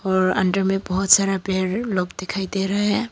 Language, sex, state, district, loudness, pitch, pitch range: Hindi, female, Tripura, Dhalai, -20 LUFS, 195 Hz, 185-195 Hz